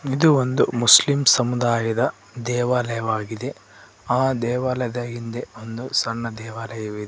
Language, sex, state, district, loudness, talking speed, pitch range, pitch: Kannada, male, Karnataka, Koppal, -21 LUFS, 95 wpm, 115-125 Hz, 120 Hz